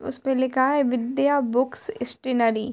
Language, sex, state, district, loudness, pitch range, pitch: Hindi, female, Bihar, Muzaffarpur, -23 LUFS, 250-275 Hz, 260 Hz